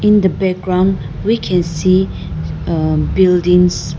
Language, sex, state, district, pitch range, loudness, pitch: English, female, Nagaland, Dimapur, 150-185 Hz, -15 LUFS, 180 Hz